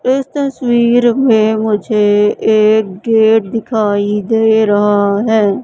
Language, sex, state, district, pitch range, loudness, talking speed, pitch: Hindi, female, Madhya Pradesh, Katni, 210-235 Hz, -12 LUFS, 105 wpm, 220 Hz